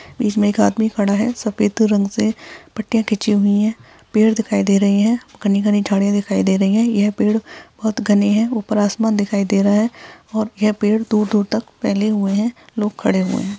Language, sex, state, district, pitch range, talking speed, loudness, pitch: Hindi, female, West Bengal, Purulia, 205-220 Hz, 205 wpm, -17 LUFS, 215 Hz